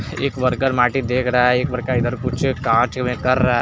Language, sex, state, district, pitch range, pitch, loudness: Hindi, male, Chandigarh, Chandigarh, 125-130 Hz, 125 Hz, -19 LUFS